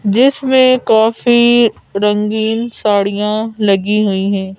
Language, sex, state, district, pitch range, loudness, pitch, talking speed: Hindi, female, Madhya Pradesh, Bhopal, 205-235 Hz, -13 LUFS, 215 Hz, 90 wpm